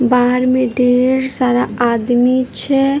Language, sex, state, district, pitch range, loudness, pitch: Maithili, female, Bihar, Madhepura, 245-255 Hz, -14 LUFS, 250 Hz